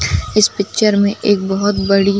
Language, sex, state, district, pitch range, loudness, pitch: Hindi, female, Uttar Pradesh, Ghazipur, 200-210 Hz, -15 LUFS, 200 Hz